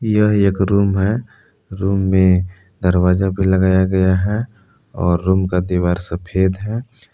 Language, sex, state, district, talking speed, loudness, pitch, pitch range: Hindi, male, Jharkhand, Palamu, 145 wpm, -17 LUFS, 95 Hz, 95-105 Hz